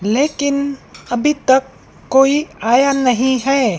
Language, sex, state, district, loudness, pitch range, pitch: Hindi, female, Madhya Pradesh, Dhar, -15 LUFS, 255-280 Hz, 270 Hz